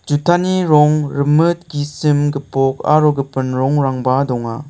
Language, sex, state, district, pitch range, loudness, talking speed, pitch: Garo, male, Meghalaya, South Garo Hills, 135-150 Hz, -15 LUFS, 115 wpm, 145 Hz